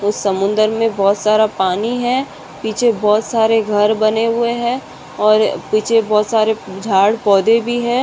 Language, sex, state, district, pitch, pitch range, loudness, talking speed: Hindi, female, Maharashtra, Aurangabad, 215 Hz, 205-230 Hz, -15 LUFS, 165 wpm